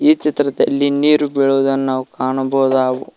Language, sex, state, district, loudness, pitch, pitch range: Kannada, male, Karnataka, Koppal, -16 LUFS, 135 Hz, 130-145 Hz